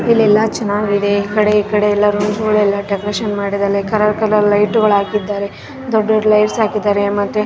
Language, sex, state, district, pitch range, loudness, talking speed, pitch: Kannada, female, Karnataka, Raichur, 205-215 Hz, -15 LUFS, 175 wpm, 210 Hz